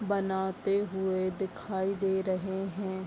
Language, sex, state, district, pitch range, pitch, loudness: Hindi, female, Bihar, Bhagalpur, 190-195 Hz, 190 Hz, -31 LUFS